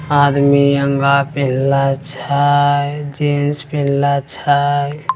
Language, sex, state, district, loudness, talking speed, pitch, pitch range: Angika, male, Bihar, Begusarai, -15 LUFS, 80 wpm, 140 Hz, 140-145 Hz